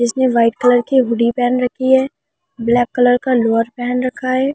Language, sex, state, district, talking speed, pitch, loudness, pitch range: Hindi, female, Delhi, New Delhi, 200 wpm, 245 Hz, -15 LUFS, 240-260 Hz